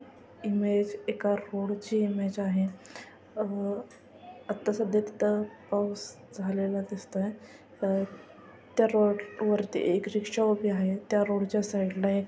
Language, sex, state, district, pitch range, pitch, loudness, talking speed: Marathi, female, Maharashtra, Sindhudurg, 200-210 Hz, 205 Hz, -30 LUFS, 125 wpm